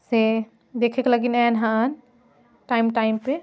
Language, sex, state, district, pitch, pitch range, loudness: Chhattisgarhi, female, Chhattisgarh, Jashpur, 240 Hz, 225-245 Hz, -22 LUFS